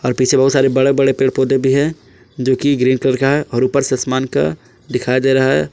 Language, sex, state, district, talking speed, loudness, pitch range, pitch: Hindi, male, Jharkhand, Palamu, 250 wpm, -15 LUFS, 130-135 Hz, 130 Hz